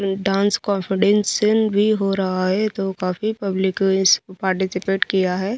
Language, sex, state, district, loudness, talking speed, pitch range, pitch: Hindi, female, Bihar, Kaimur, -19 LUFS, 140 wpm, 190-205 Hz, 195 Hz